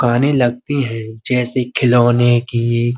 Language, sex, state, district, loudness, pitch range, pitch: Hindi, male, Uttar Pradesh, Budaun, -16 LUFS, 120-125 Hz, 120 Hz